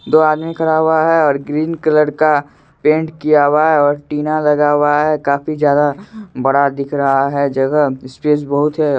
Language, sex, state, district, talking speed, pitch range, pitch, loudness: Hindi, male, Bihar, Supaul, 185 wpm, 145-155 Hz, 150 Hz, -14 LUFS